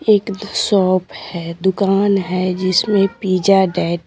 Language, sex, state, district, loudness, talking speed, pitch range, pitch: Hindi, female, Bihar, Patna, -16 LUFS, 145 wpm, 185-200 Hz, 190 Hz